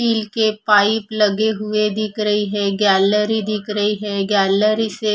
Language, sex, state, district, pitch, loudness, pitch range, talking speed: Hindi, female, Odisha, Khordha, 210 Hz, -17 LUFS, 205-215 Hz, 175 wpm